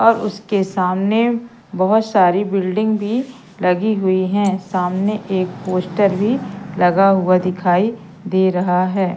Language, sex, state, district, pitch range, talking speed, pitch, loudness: Hindi, female, Madhya Pradesh, Katni, 185-210 Hz, 130 wpm, 195 Hz, -17 LUFS